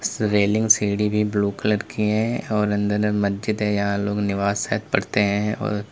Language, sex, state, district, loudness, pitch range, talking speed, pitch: Hindi, male, Uttar Pradesh, Lalitpur, -21 LUFS, 100-105 Hz, 205 wpm, 105 Hz